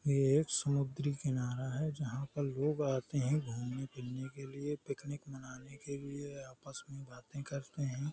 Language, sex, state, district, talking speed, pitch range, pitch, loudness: Hindi, male, Uttar Pradesh, Hamirpur, 170 wpm, 130-145 Hz, 140 Hz, -38 LUFS